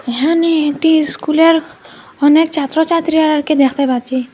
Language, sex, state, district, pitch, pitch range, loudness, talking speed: Bengali, female, Assam, Hailakandi, 305 Hz, 280-320 Hz, -13 LUFS, 110 wpm